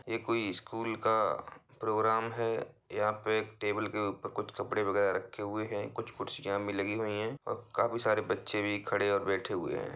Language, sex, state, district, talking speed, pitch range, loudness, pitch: Hindi, male, Bihar, Bhagalpur, 205 wpm, 105-110 Hz, -33 LUFS, 110 Hz